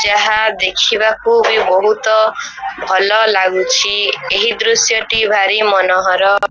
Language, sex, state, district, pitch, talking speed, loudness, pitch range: Odia, female, Odisha, Sambalpur, 210 Hz, 110 wpm, -12 LUFS, 190-220 Hz